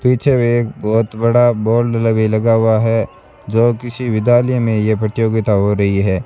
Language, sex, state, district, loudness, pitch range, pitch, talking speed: Hindi, male, Rajasthan, Bikaner, -15 LUFS, 110-120 Hz, 115 Hz, 180 wpm